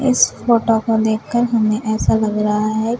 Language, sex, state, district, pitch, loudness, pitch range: Hindi, female, Uttar Pradesh, Shamli, 220 Hz, -17 LUFS, 215-235 Hz